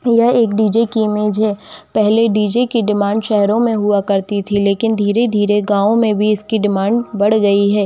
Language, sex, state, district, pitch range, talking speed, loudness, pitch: Hindi, female, Jharkhand, Jamtara, 205-225 Hz, 190 wpm, -15 LUFS, 210 Hz